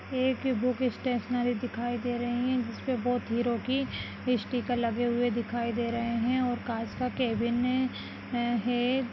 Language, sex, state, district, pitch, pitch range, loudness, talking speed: Hindi, female, Rajasthan, Nagaur, 245 Hz, 235-250 Hz, -30 LUFS, 150 wpm